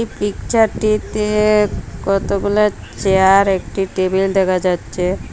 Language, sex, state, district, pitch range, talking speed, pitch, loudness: Bengali, female, Assam, Hailakandi, 190-210 Hz, 80 wpm, 195 Hz, -16 LUFS